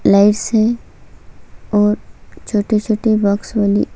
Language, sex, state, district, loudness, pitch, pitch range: Hindi, female, Chhattisgarh, Sukma, -16 LUFS, 210 Hz, 205-220 Hz